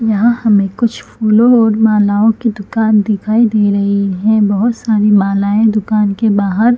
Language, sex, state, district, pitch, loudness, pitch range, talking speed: Hindi, female, Chhattisgarh, Bilaspur, 215 Hz, -12 LUFS, 205-225 Hz, 160 wpm